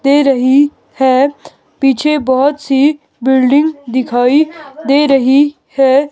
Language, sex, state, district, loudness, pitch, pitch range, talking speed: Hindi, female, Himachal Pradesh, Shimla, -12 LUFS, 275 Hz, 265-290 Hz, 110 wpm